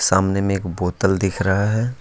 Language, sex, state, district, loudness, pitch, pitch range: Hindi, male, Jharkhand, Ranchi, -20 LUFS, 95 Hz, 95-100 Hz